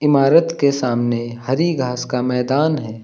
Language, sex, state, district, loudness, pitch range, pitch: Hindi, male, Uttar Pradesh, Lucknow, -18 LUFS, 125-150 Hz, 130 Hz